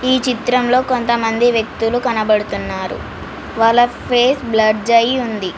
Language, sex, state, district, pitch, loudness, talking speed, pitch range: Telugu, female, Telangana, Mahabubabad, 235 Hz, -15 LUFS, 105 wpm, 220-250 Hz